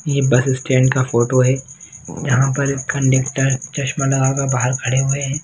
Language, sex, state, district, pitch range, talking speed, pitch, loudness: Hindi, male, Bihar, Jahanabad, 130-140 Hz, 165 wpm, 135 Hz, -17 LUFS